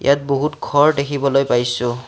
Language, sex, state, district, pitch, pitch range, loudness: Assamese, male, Assam, Kamrup Metropolitan, 140 Hz, 125-145 Hz, -17 LUFS